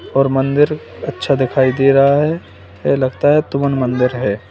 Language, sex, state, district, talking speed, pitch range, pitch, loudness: Hindi, male, Uttar Pradesh, Lalitpur, 175 wpm, 125-140 Hz, 135 Hz, -15 LUFS